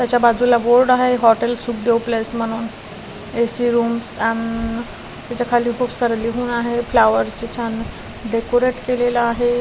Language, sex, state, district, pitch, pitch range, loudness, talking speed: Marathi, female, Maharashtra, Washim, 235 Hz, 230-245 Hz, -18 LUFS, 145 wpm